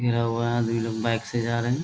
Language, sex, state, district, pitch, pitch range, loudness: Hindi, male, Bihar, Bhagalpur, 115 Hz, 115-120 Hz, -26 LUFS